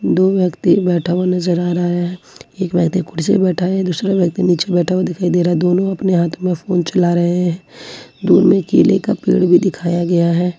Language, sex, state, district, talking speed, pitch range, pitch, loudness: Hindi, female, Jharkhand, Ranchi, 225 wpm, 175-185 Hz, 180 Hz, -15 LUFS